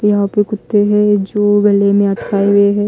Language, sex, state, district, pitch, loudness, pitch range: Hindi, female, Haryana, Jhajjar, 205 Hz, -13 LUFS, 200-210 Hz